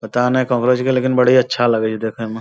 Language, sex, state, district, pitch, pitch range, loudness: Angika, male, Bihar, Bhagalpur, 125 Hz, 110-125 Hz, -16 LUFS